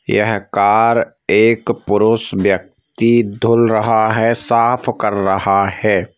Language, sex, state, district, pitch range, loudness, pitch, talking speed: Hindi, male, Madhya Pradesh, Bhopal, 100-115 Hz, -15 LUFS, 110 Hz, 125 wpm